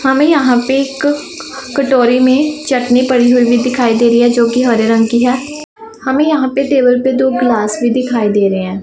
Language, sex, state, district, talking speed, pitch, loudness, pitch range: Hindi, female, Punjab, Pathankot, 205 wpm, 255 Hz, -12 LUFS, 240-275 Hz